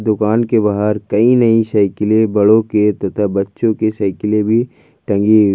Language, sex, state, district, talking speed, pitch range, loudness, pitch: Hindi, male, Jharkhand, Ranchi, 175 wpm, 105-110 Hz, -14 LUFS, 105 Hz